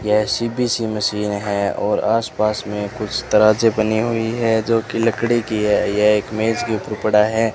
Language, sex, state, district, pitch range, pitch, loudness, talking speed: Hindi, male, Rajasthan, Bikaner, 105-115 Hz, 110 Hz, -18 LUFS, 200 wpm